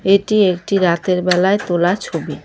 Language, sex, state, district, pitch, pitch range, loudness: Bengali, female, West Bengal, Cooch Behar, 190 Hz, 180-200 Hz, -16 LUFS